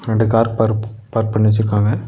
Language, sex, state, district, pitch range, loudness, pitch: Tamil, male, Tamil Nadu, Nilgiris, 110-115 Hz, -17 LUFS, 110 Hz